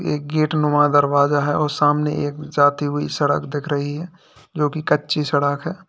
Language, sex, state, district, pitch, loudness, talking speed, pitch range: Hindi, male, Uttar Pradesh, Lalitpur, 145 Hz, -19 LUFS, 195 wpm, 145-150 Hz